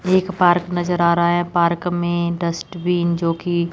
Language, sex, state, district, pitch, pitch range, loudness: Hindi, female, Chandigarh, Chandigarh, 175 Hz, 170-175 Hz, -19 LUFS